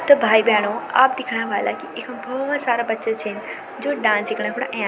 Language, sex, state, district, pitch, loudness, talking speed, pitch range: Garhwali, female, Uttarakhand, Tehri Garhwal, 235 Hz, -20 LUFS, 195 wpm, 220-265 Hz